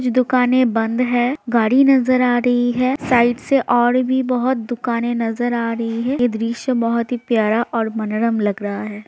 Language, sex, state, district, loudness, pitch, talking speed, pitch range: Hindi, female, Bihar, Jahanabad, -18 LUFS, 240 Hz, 180 wpm, 230-255 Hz